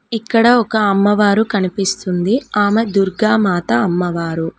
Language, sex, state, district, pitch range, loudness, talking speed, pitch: Telugu, female, Telangana, Mahabubabad, 185-220 Hz, -15 LUFS, 90 wpm, 205 Hz